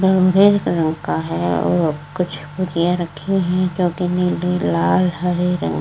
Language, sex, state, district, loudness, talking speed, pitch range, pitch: Hindi, female, Uttar Pradesh, Varanasi, -18 LUFS, 125 wpm, 150-180 Hz, 175 Hz